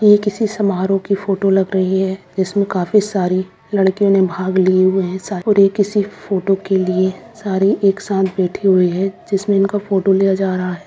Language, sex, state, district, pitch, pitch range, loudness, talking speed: Hindi, female, Bihar, Jamui, 195 Hz, 185-200 Hz, -16 LUFS, 205 wpm